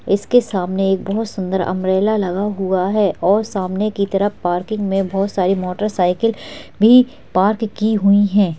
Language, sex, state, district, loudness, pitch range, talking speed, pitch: Hindi, female, Chhattisgarh, Kabirdham, -17 LUFS, 185-210 Hz, 160 wpm, 195 Hz